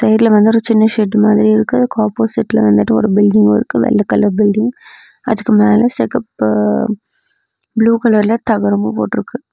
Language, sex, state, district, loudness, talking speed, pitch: Tamil, female, Tamil Nadu, Namakkal, -13 LUFS, 145 wpm, 210 Hz